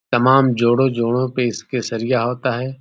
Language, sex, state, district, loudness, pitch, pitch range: Hindi, male, Uttar Pradesh, Deoria, -18 LUFS, 125 Hz, 120-130 Hz